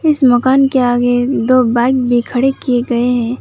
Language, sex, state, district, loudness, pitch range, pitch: Hindi, female, West Bengal, Alipurduar, -13 LUFS, 245-260 Hz, 250 Hz